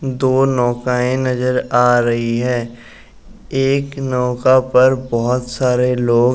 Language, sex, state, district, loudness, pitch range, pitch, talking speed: Hindi, male, Uttar Pradesh, Jalaun, -16 LUFS, 120-130 Hz, 125 Hz, 125 wpm